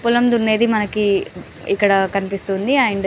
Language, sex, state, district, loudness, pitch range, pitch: Telugu, female, Telangana, Karimnagar, -17 LUFS, 195-235 Hz, 205 Hz